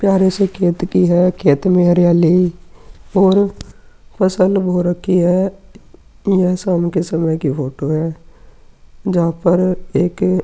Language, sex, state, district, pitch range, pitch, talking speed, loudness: Hindi, male, Uttar Pradesh, Muzaffarnagar, 170-190 Hz, 180 Hz, 140 wpm, -15 LUFS